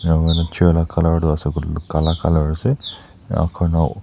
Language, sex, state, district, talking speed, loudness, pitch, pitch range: Nagamese, male, Nagaland, Dimapur, 180 wpm, -19 LUFS, 80 Hz, 80-85 Hz